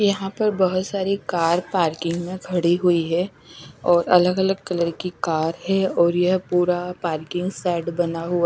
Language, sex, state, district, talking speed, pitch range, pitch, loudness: Hindi, female, Chandigarh, Chandigarh, 170 wpm, 170-185 Hz, 175 Hz, -21 LUFS